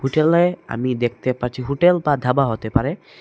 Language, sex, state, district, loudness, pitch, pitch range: Bengali, male, Assam, Hailakandi, -19 LUFS, 135 Hz, 125-155 Hz